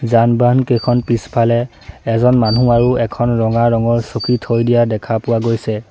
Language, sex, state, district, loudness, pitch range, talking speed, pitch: Assamese, male, Assam, Sonitpur, -15 LUFS, 115-120 Hz, 150 wpm, 115 Hz